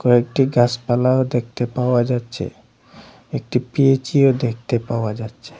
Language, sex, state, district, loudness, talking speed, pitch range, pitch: Bengali, male, Assam, Hailakandi, -19 LUFS, 105 wpm, 120-130 Hz, 125 Hz